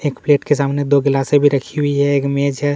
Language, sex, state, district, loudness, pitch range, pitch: Hindi, male, Chhattisgarh, Kabirdham, -16 LUFS, 140-145 Hz, 140 Hz